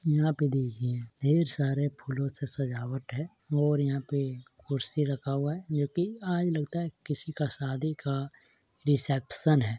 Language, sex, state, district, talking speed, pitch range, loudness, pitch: Hindi, male, Bihar, Vaishali, 165 wpm, 135-155 Hz, -30 LUFS, 140 Hz